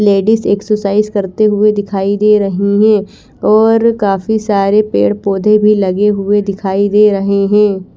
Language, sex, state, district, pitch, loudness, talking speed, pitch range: Hindi, female, Chandigarh, Chandigarh, 205 Hz, -12 LUFS, 150 wpm, 200-210 Hz